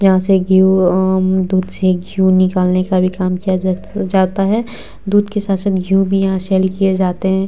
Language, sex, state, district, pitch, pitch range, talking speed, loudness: Hindi, female, Bihar, Vaishali, 190 Hz, 185-195 Hz, 225 wpm, -15 LUFS